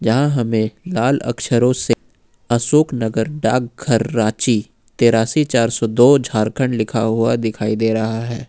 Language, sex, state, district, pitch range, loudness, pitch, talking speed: Hindi, male, Jharkhand, Ranchi, 110-125 Hz, -17 LUFS, 115 Hz, 135 wpm